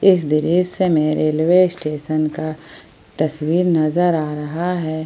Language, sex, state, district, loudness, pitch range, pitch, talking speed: Hindi, female, Jharkhand, Ranchi, -18 LUFS, 155-175 Hz, 155 Hz, 130 wpm